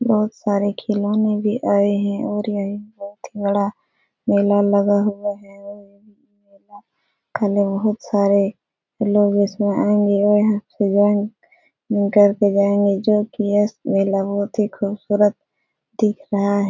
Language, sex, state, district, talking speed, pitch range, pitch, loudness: Hindi, female, Uttar Pradesh, Etah, 130 wpm, 200-210 Hz, 205 Hz, -19 LUFS